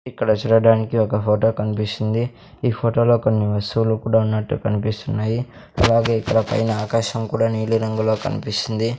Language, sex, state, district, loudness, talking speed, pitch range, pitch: Telugu, male, Andhra Pradesh, Sri Satya Sai, -20 LUFS, 140 wpm, 110-115 Hz, 110 Hz